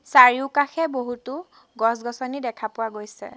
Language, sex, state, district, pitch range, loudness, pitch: Assamese, female, Assam, Sonitpur, 225-275 Hz, -22 LUFS, 245 Hz